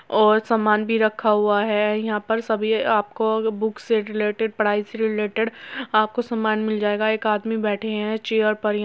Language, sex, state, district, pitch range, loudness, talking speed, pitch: Hindi, female, Uttar Pradesh, Muzaffarnagar, 210-220 Hz, -21 LUFS, 190 wpm, 215 Hz